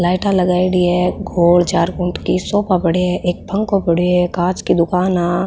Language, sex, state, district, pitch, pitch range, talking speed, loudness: Rajasthani, female, Rajasthan, Nagaur, 180 Hz, 175-185 Hz, 210 wpm, -16 LUFS